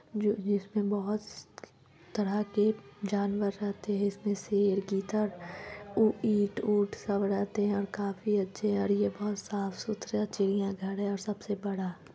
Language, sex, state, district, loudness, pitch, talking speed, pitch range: Hindi, female, Bihar, Lakhisarai, -31 LUFS, 205 Hz, 165 wpm, 200-210 Hz